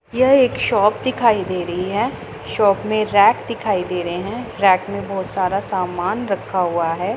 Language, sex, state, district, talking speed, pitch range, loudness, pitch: Hindi, female, Punjab, Pathankot, 185 wpm, 185-215 Hz, -19 LUFS, 195 Hz